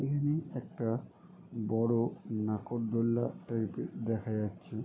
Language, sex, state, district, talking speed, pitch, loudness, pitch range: Bengali, male, West Bengal, Jalpaiguri, 100 wpm, 115 Hz, -34 LUFS, 110-120 Hz